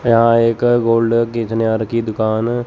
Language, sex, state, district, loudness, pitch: Hindi, male, Chandigarh, Chandigarh, -15 LUFS, 115 Hz